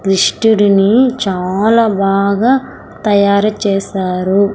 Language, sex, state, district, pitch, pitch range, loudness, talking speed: Telugu, female, Andhra Pradesh, Sri Satya Sai, 200 Hz, 195-220 Hz, -12 LUFS, 65 wpm